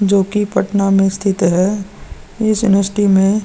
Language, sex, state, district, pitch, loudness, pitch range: Hindi, male, Bihar, Vaishali, 200 Hz, -15 LUFS, 195-205 Hz